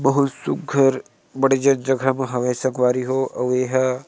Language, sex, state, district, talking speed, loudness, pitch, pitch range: Chhattisgarhi, male, Chhattisgarh, Sarguja, 160 wpm, -20 LUFS, 130 Hz, 130-135 Hz